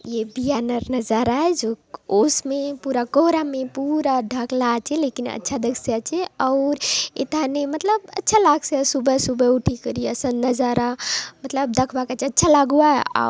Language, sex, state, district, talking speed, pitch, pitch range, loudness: Halbi, female, Chhattisgarh, Bastar, 155 wpm, 265 Hz, 245-290 Hz, -20 LUFS